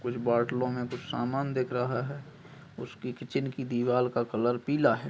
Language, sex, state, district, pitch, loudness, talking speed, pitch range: Hindi, male, Maharashtra, Nagpur, 125 Hz, -30 LUFS, 190 wpm, 120-135 Hz